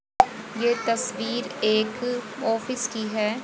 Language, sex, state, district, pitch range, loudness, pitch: Hindi, female, Haryana, Charkhi Dadri, 220-245 Hz, -25 LUFS, 230 Hz